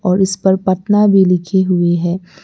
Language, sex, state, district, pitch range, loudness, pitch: Hindi, male, Arunachal Pradesh, Lower Dibang Valley, 180-190 Hz, -14 LUFS, 190 Hz